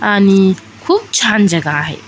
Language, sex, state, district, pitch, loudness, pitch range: Marathi, female, Maharashtra, Aurangabad, 195 Hz, -12 LUFS, 170-215 Hz